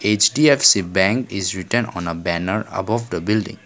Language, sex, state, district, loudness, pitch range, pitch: English, male, Assam, Kamrup Metropolitan, -18 LUFS, 95-115 Hz, 105 Hz